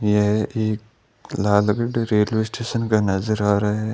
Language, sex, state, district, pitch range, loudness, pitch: Hindi, male, Rajasthan, Bikaner, 105-110 Hz, -21 LUFS, 110 Hz